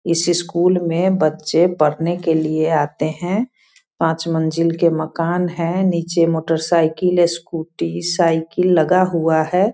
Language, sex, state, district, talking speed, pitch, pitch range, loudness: Hindi, female, Bihar, Sitamarhi, 135 wpm, 170 Hz, 160-175 Hz, -18 LUFS